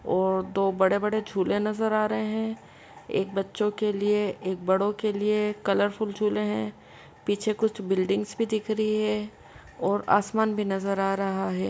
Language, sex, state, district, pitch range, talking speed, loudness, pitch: Hindi, female, Uttar Pradesh, Etah, 195-215 Hz, 170 wpm, -27 LUFS, 205 Hz